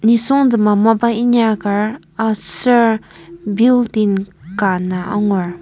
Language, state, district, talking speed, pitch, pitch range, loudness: Ao, Nagaland, Kohima, 85 wpm, 215 Hz, 195-230 Hz, -15 LUFS